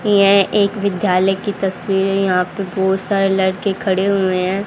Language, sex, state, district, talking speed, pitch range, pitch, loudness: Hindi, female, Haryana, Rohtak, 180 wpm, 190-200 Hz, 195 Hz, -16 LUFS